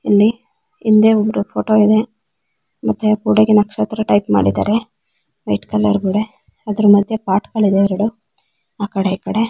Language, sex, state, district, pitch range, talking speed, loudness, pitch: Kannada, female, Karnataka, Belgaum, 195-215 Hz, 115 wpm, -16 LUFS, 210 Hz